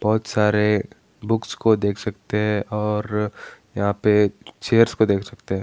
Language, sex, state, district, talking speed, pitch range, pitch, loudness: Hindi, male, Bihar, Gaya, 160 wpm, 105-110 Hz, 105 Hz, -21 LUFS